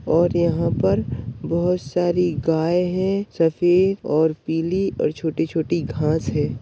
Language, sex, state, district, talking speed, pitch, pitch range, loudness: Hindi, male, Uttar Pradesh, Deoria, 135 wpm, 165 Hz, 155-175 Hz, -21 LUFS